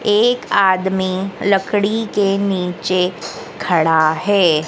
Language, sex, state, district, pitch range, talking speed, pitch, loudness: Hindi, female, Madhya Pradesh, Dhar, 180-200 Hz, 90 wpm, 190 Hz, -16 LUFS